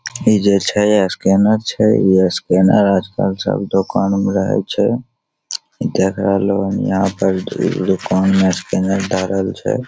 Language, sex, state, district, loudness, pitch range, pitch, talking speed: Maithili, male, Bihar, Begusarai, -16 LUFS, 95-100 Hz, 95 Hz, 145 wpm